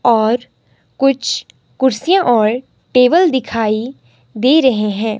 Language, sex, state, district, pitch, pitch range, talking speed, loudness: Hindi, female, Himachal Pradesh, Shimla, 245 Hz, 220-270 Hz, 105 wpm, -15 LUFS